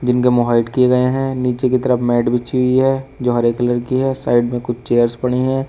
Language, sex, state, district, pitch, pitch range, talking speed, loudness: Hindi, male, Uttar Pradesh, Shamli, 125 Hz, 120-130 Hz, 255 wpm, -16 LUFS